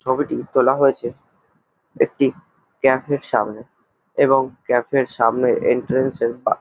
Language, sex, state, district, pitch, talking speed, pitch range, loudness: Bengali, male, West Bengal, Jalpaiguri, 130 Hz, 135 wpm, 120-135 Hz, -19 LUFS